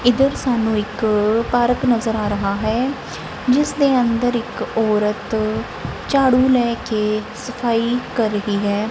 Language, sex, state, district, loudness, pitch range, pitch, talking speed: Punjabi, female, Punjab, Kapurthala, -19 LUFS, 215-250 Hz, 230 Hz, 135 wpm